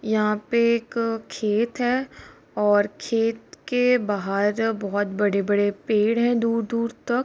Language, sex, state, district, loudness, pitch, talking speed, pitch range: Hindi, female, Bihar, Kishanganj, -23 LUFS, 225 Hz, 130 wpm, 205-235 Hz